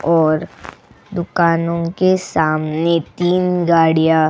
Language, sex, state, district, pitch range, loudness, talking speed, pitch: Hindi, female, Goa, North and South Goa, 160-175 Hz, -16 LUFS, 100 wpm, 170 Hz